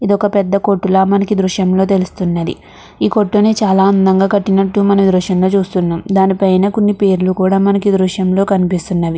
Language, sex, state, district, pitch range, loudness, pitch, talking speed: Telugu, female, Andhra Pradesh, Krishna, 185-200 Hz, -13 LUFS, 195 Hz, 195 wpm